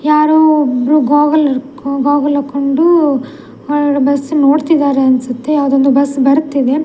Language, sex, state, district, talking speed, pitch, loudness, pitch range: Kannada, female, Karnataka, Dakshina Kannada, 115 wpm, 285 Hz, -12 LUFS, 275-300 Hz